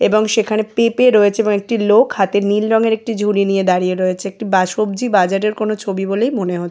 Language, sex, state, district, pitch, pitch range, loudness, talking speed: Bengali, female, West Bengal, Jalpaiguri, 210 Hz, 195-220 Hz, -16 LUFS, 215 wpm